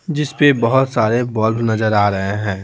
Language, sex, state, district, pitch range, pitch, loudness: Hindi, male, Bihar, Patna, 105-130 Hz, 115 Hz, -16 LUFS